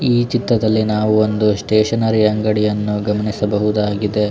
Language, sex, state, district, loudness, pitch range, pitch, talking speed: Kannada, male, Karnataka, Shimoga, -16 LUFS, 105-110 Hz, 105 Hz, 110 wpm